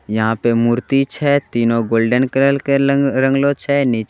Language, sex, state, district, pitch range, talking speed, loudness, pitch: Angika, male, Bihar, Begusarai, 115-140 Hz, 175 wpm, -16 LUFS, 130 Hz